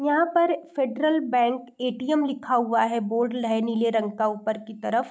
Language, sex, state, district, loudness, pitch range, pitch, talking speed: Hindi, female, Uttar Pradesh, Deoria, -24 LUFS, 225-285 Hz, 245 Hz, 200 wpm